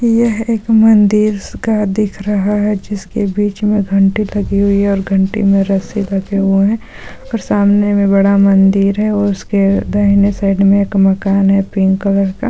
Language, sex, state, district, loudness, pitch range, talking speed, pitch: Hindi, female, Bihar, Supaul, -13 LUFS, 195-210 Hz, 180 wpm, 200 Hz